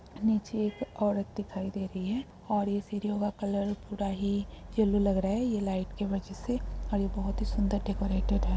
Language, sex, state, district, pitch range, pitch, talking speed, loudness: Hindi, female, Bihar, Jamui, 195-210 Hz, 200 Hz, 215 wpm, -32 LUFS